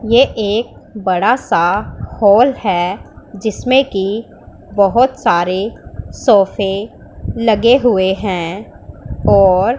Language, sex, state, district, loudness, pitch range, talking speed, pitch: Hindi, female, Punjab, Pathankot, -14 LUFS, 195-235 Hz, 90 wpm, 210 Hz